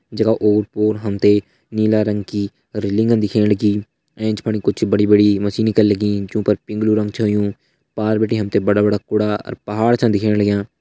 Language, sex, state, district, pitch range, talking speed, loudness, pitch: Garhwali, male, Uttarakhand, Uttarkashi, 105-110 Hz, 205 wpm, -18 LUFS, 105 Hz